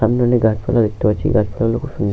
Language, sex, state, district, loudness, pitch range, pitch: Bengali, male, West Bengal, Malda, -17 LUFS, 105-120 Hz, 110 Hz